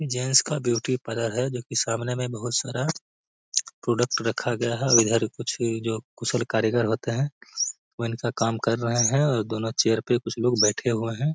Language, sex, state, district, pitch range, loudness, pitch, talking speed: Hindi, male, Bihar, Gaya, 115-125 Hz, -25 LUFS, 120 Hz, 200 wpm